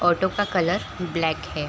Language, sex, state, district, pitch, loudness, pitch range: Hindi, female, Chhattisgarh, Raigarh, 175 Hz, -24 LUFS, 165-185 Hz